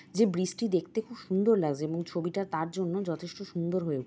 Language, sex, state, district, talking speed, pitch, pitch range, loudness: Bengali, female, West Bengal, North 24 Parganas, 205 wpm, 180 Hz, 170-195 Hz, -31 LUFS